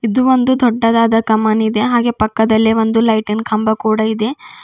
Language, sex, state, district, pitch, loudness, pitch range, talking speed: Kannada, female, Karnataka, Bidar, 225 Hz, -14 LUFS, 220-235 Hz, 155 wpm